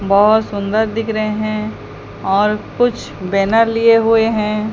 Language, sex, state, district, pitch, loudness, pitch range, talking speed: Hindi, female, Odisha, Sambalpur, 215 Hz, -15 LUFS, 205-225 Hz, 140 wpm